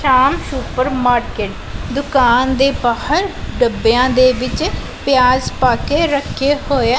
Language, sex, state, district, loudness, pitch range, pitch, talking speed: Punjabi, female, Punjab, Pathankot, -15 LUFS, 250-280 Hz, 260 Hz, 120 wpm